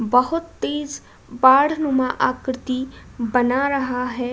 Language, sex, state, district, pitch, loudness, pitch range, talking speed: Hindi, female, Uttar Pradesh, Budaun, 255 Hz, -20 LUFS, 250-280 Hz, 110 wpm